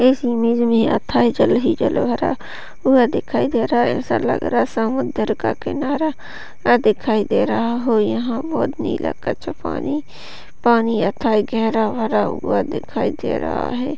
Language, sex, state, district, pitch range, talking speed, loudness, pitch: Hindi, female, Maharashtra, Sindhudurg, 225-260 Hz, 160 wpm, -19 LUFS, 235 Hz